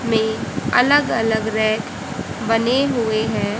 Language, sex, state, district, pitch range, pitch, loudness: Hindi, female, Haryana, Jhajjar, 220-245 Hz, 225 Hz, -19 LUFS